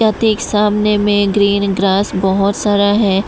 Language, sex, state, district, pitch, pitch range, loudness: Hindi, female, Tripura, West Tripura, 205 Hz, 200-210 Hz, -14 LUFS